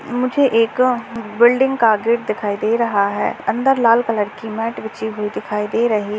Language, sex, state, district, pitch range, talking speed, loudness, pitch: Hindi, male, Rajasthan, Churu, 215-240 Hz, 195 wpm, -17 LUFS, 230 Hz